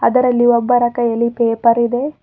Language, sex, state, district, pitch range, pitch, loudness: Kannada, female, Karnataka, Bidar, 235-245 Hz, 240 Hz, -15 LUFS